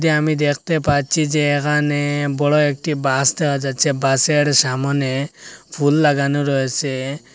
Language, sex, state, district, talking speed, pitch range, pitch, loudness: Bengali, male, Assam, Hailakandi, 120 wpm, 140-150 Hz, 145 Hz, -17 LUFS